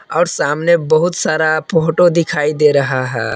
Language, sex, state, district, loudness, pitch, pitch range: Hindi, male, Jharkhand, Palamu, -14 LUFS, 155 Hz, 150-170 Hz